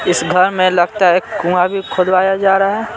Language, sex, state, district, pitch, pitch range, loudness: Hindi, male, Bihar, Patna, 185 Hz, 180-195 Hz, -14 LUFS